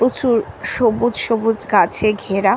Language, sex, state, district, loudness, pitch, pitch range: Bengali, female, West Bengal, North 24 Parganas, -17 LUFS, 225 Hz, 215-240 Hz